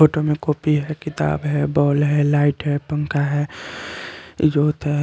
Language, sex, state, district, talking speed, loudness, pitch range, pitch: Hindi, male, Chandigarh, Chandigarh, 180 wpm, -20 LUFS, 145-150 Hz, 145 Hz